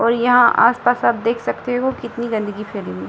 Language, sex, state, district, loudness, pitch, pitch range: Hindi, female, Bihar, Supaul, -17 LUFS, 235 Hz, 215-245 Hz